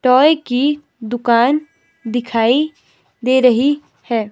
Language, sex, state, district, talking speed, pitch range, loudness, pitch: Hindi, female, Himachal Pradesh, Shimla, 95 wpm, 235-295 Hz, -16 LUFS, 255 Hz